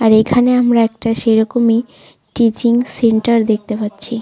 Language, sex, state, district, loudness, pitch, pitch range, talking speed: Bengali, female, West Bengal, Jalpaiguri, -14 LUFS, 230 Hz, 220-240 Hz, 130 wpm